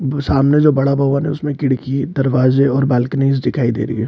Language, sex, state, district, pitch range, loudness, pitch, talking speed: Hindi, male, Bihar, Purnia, 130-140 Hz, -16 LUFS, 135 Hz, 220 wpm